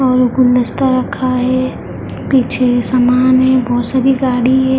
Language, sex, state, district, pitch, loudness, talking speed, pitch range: Hindi, female, Maharashtra, Mumbai Suburban, 255 Hz, -13 LUFS, 140 wpm, 250-260 Hz